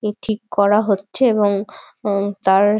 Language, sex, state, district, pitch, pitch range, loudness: Bengali, female, West Bengal, Dakshin Dinajpur, 205 Hz, 200-215 Hz, -18 LUFS